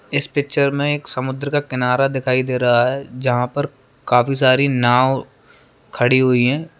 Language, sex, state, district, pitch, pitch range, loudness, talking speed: Hindi, male, Bihar, Darbhanga, 130 Hz, 125-140 Hz, -17 LUFS, 165 wpm